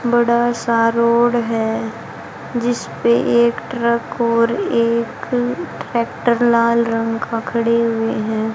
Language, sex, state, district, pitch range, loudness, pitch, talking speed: Hindi, female, Haryana, Jhajjar, 230-235 Hz, -17 LUFS, 235 Hz, 110 wpm